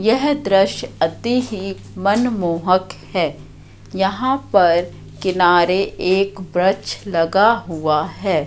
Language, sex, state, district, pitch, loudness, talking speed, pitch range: Hindi, female, Madhya Pradesh, Katni, 195 Hz, -18 LUFS, 100 wpm, 175-210 Hz